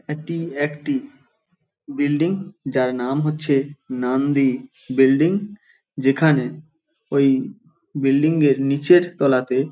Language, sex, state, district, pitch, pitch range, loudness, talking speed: Bengali, male, West Bengal, Paschim Medinipur, 145 Hz, 135-160 Hz, -20 LUFS, 95 wpm